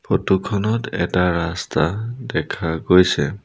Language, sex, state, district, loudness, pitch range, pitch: Assamese, male, Assam, Sonitpur, -20 LUFS, 85-105 Hz, 90 Hz